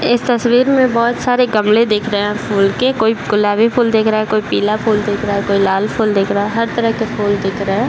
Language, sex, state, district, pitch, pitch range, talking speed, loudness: Hindi, male, Bihar, Saran, 215 Hz, 205-235 Hz, 275 wpm, -14 LUFS